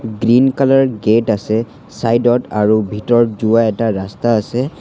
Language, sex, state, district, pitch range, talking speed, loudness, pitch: Assamese, male, Assam, Sonitpur, 110-120 Hz, 150 wpm, -15 LUFS, 115 Hz